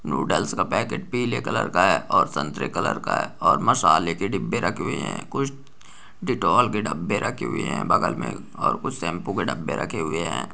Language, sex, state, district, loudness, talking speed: Hindi, male, Bihar, Gopalganj, -23 LUFS, 200 wpm